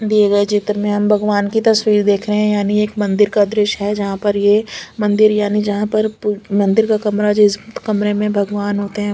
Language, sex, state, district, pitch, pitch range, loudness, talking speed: Hindi, female, Delhi, New Delhi, 210 Hz, 205-210 Hz, -16 LUFS, 215 wpm